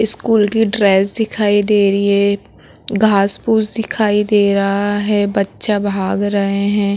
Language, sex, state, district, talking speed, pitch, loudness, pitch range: Hindi, female, Chhattisgarh, Korba, 140 wpm, 205 Hz, -15 LUFS, 200-215 Hz